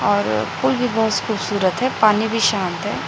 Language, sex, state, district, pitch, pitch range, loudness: Hindi, female, Chhattisgarh, Raipur, 205 Hz, 185-225 Hz, -19 LUFS